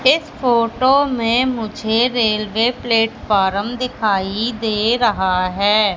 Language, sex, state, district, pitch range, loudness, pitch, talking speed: Hindi, female, Madhya Pradesh, Katni, 210-245 Hz, -17 LUFS, 225 Hz, 100 wpm